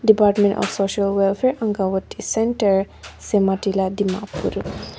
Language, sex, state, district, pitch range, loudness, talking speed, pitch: Hindi, female, Nagaland, Dimapur, 195-210 Hz, -20 LUFS, 95 wpm, 200 Hz